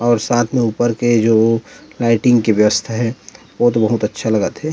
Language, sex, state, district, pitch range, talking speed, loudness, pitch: Chhattisgarhi, male, Chhattisgarh, Rajnandgaon, 110-120 Hz, 190 wpm, -16 LUFS, 115 Hz